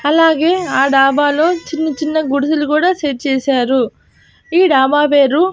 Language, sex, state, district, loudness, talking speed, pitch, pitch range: Telugu, female, Andhra Pradesh, Annamaya, -14 LUFS, 150 wpm, 295 Hz, 275-320 Hz